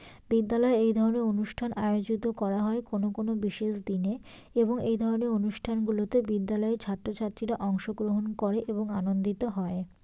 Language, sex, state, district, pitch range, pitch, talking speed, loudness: Bengali, female, West Bengal, Jalpaiguri, 210-230 Hz, 215 Hz, 130 wpm, -29 LUFS